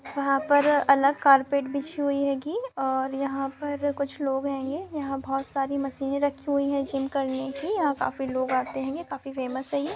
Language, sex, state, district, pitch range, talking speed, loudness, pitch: Hindi, female, Bihar, Araria, 270-285 Hz, 225 wpm, -26 LUFS, 275 Hz